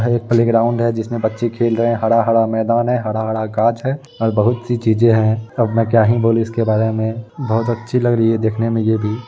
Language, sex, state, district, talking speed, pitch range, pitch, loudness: Hindi, male, Bihar, Araria, 250 wpm, 110-120 Hz, 115 Hz, -17 LUFS